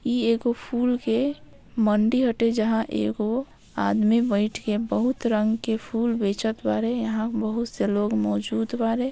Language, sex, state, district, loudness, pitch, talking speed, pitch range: Bhojpuri, female, Bihar, Saran, -24 LUFS, 225 Hz, 150 wpm, 215-240 Hz